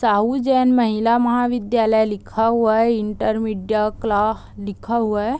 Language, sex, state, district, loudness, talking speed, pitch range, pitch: Hindi, female, Bihar, Gopalganj, -19 LUFS, 145 wpm, 215-235 Hz, 220 Hz